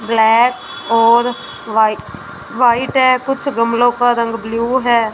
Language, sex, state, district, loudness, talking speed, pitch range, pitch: Hindi, female, Punjab, Fazilka, -14 LUFS, 130 wpm, 230-245 Hz, 235 Hz